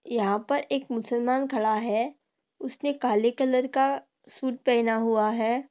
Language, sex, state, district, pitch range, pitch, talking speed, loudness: Hindi, female, Maharashtra, Dhule, 225-270 Hz, 245 Hz, 145 wpm, -26 LUFS